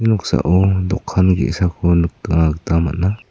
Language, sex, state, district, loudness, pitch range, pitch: Garo, male, Meghalaya, South Garo Hills, -17 LUFS, 85-95 Hz, 90 Hz